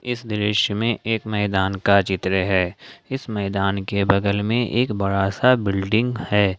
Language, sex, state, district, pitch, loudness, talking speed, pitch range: Hindi, male, Jharkhand, Ranchi, 100 Hz, -21 LUFS, 165 wpm, 100-110 Hz